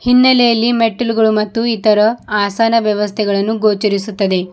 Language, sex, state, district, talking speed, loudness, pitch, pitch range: Kannada, female, Karnataka, Bidar, 95 wpm, -14 LUFS, 215 Hz, 210-230 Hz